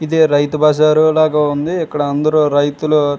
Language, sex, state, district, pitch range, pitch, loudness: Telugu, male, Andhra Pradesh, Srikakulam, 145-155 Hz, 150 Hz, -14 LUFS